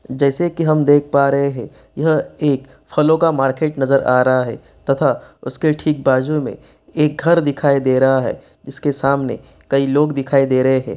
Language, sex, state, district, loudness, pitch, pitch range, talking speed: Hindi, male, Bihar, East Champaran, -16 LUFS, 140 Hz, 135-150 Hz, 190 wpm